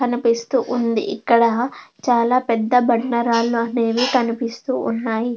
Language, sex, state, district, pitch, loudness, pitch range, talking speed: Telugu, female, Andhra Pradesh, Anantapur, 235 Hz, -19 LUFS, 230-245 Hz, 110 wpm